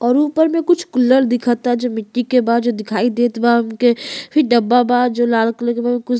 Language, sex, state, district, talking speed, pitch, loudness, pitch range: Bhojpuri, female, Uttar Pradesh, Gorakhpur, 240 wpm, 245 Hz, -16 LUFS, 235-255 Hz